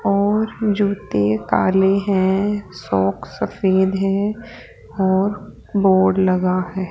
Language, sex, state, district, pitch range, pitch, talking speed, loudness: Hindi, female, Rajasthan, Jaipur, 185-205 Hz, 190 Hz, 95 wpm, -18 LUFS